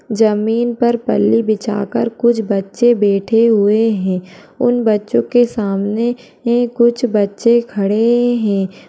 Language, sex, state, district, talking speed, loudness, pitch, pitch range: Hindi, female, Uttar Pradesh, Deoria, 120 wpm, -15 LUFS, 225 Hz, 205-235 Hz